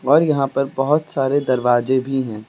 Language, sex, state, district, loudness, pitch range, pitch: Hindi, female, Uttar Pradesh, Lucknow, -18 LUFS, 130-140 Hz, 135 Hz